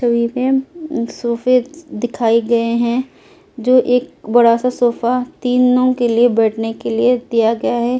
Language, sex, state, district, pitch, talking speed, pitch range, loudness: Hindi, female, Delhi, New Delhi, 240 Hz, 135 wpm, 235-255 Hz, -16 LUFS